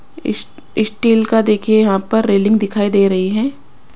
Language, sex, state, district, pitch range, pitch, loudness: Hindi, female, Maharashtra, Washim, 200-225 Hz, 215 Hz, -15 LUFS